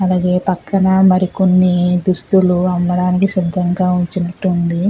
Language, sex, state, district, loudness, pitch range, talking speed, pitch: Telugu, female, Andhra Pradesh, Guntur, -14 LUFS, 180-185 Hz, 110 wpm, 180 Hz